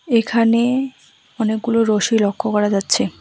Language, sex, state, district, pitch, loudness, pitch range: Bengali, female, West Bengal, Alipurduar, 225 Hz, -17 LUFS, 215-235 Hz